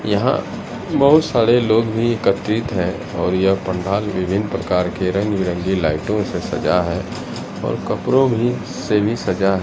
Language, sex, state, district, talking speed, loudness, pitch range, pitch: Hindi, male, Bihar, Katihar, 155 wpm, -19 LUFS, 95-115 Hz, 100 Hz